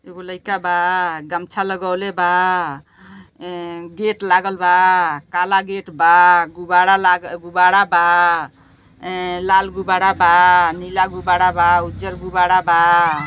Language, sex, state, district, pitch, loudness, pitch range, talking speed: Bhojpuri, female, Uttar Pradesh, Gorakhpur, 180 Hz, -15 LUFS, 175-185 Hz, 110 wpm